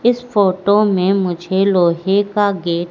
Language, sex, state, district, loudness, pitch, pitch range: Hindi, female, Madhya Pradesh, Katni, -15 LUFS, 195 Hz, 180-205 Hz